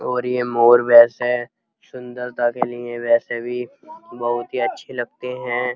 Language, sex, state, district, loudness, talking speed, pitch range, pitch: Hindi, male, Uttar Pradesh, Muzaffarnagar, -19 LUFS, 145 wpm, 120-125 Hz, 120 Hz